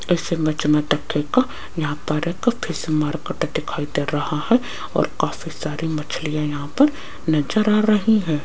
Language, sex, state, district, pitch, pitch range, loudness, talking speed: Hindi, female, Rajasthan, Jaipur, 155 Hz, 150-185 Hz, -21 LUFS, 165 wpm